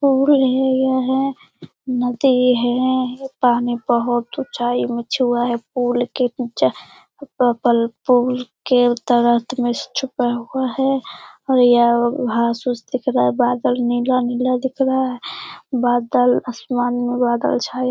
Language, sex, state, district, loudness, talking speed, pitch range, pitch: Hindi, female, Bihar, Lakhisarai, -18 LUFS, 125 wpm, 240-260 Hz, 245 Hz